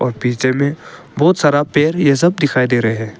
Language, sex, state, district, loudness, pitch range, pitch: Hindi, male, Arunachal Pradesh, Papum Pare, -15 LUFS, 125-155 Hz, 140 Hz